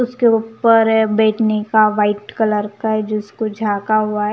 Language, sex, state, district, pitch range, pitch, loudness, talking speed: Hindi, female, Punjab, Kapurthala, 210-225 Hz, 215 Hz, -16 LUFS, 165 wpm